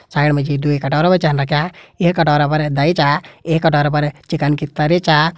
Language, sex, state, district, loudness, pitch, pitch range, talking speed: Hindi, male, Uttarakhand, Tehri Garhwal, -16 LUFS, 150 Hz, 145-165 Hz, 225 wpm